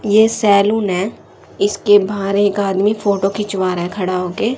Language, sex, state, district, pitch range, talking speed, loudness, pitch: Hindi, female, Haryana, Rohtak, 195-210 Hz, 170 wpm, -16 LUFS, 200 Hz